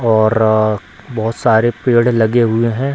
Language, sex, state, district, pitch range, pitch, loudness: Hindi, female, Bihar, Samastipur, 110-120 Hz, 115 Hz, -14 LUFS